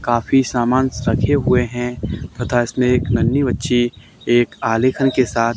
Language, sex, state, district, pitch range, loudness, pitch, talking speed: Hindi, male, Haryana, Charkhi Dadri, 120-130 Hz, -18 LUFS, 120 Hz, 150 wpm